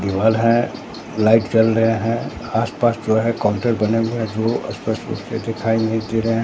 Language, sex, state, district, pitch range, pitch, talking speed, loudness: Hindi, male, Bihar, Katihar, 110-115 Hz, 115 Hz, 205 wpm, -19 LUFS